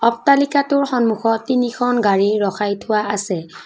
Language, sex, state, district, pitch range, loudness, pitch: Assamese, female, Assam, Kamrup Metropolitan, 205-250 Hz, -17 LUFS, 225 Hz